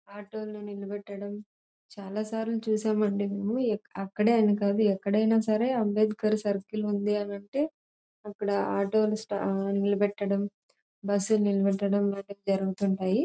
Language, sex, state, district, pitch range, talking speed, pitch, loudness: Telugu, female, Andhra Pradesh, Anantapur, 200-215 Hz, 120 wpm, 205 Hz, -28 LUFS